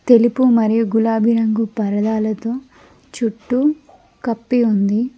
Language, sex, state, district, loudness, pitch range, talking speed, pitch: Telugu, female, Telangana, Mahabubabad, -17 LUFS, 220-245 Hz, 95 wpm, 230 Hz